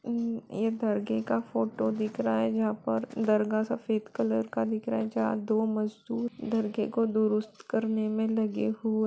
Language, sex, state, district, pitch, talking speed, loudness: Hindi, female, Bihar, Saran, 215 Hz, 185 wpm, -30 LUFS